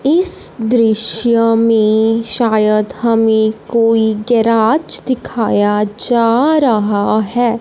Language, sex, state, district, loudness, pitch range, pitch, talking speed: Hindi, female, Punjab, Fazilka, -13 LUFS, 220-235 Hz, 225 Hz, 85 wpm